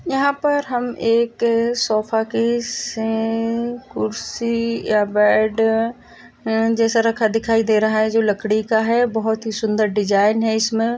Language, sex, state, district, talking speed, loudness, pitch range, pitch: Hindi, female, Maharashtra, Solapur, 135 wpm, -19 LUFS, 220-235 Hz, 225 Hz